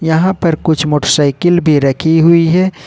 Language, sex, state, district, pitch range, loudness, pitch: Hindi, male, Jharkhand, Ranchi, 150-170 Hz, -11 LUFS, 160 Hz